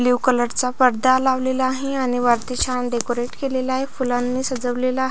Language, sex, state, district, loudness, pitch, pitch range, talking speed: Marathi, female, Maharashtra, Pune, -20 LUFS, 255 Hz, 245-260 Hz, 175 wpm